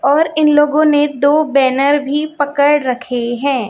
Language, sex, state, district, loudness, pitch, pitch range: Hindi, female, Chhattisgarh, Raipur, -14 LUFS, 290 Hz, 270-295 Hz